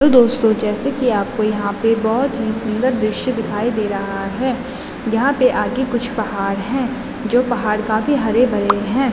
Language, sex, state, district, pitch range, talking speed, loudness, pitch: Hindi, female, Uttarakhand, Tehri Garhwal, 215-255 Hz, 170 wpm, -18 LUFS, 230 Hz